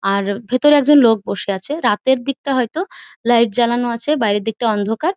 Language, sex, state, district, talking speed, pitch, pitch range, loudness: Bengali, female, West Bengal, Malda, 175 wpm, 240 Hz, 220-285 Hz, -16 LUFS